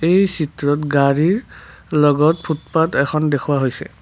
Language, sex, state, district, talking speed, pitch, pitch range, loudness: Assamese, male, Assam, Kamrup Metropolitan, 120 wpm, 150 Hz, 145-160 Hz, -17 LUFS